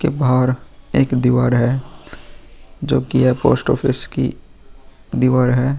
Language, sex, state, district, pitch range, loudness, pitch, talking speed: Hindi, male, Bihar, Vaishali, 125-135 Hz, -17 LUFS, 130 Hz, 135 wpm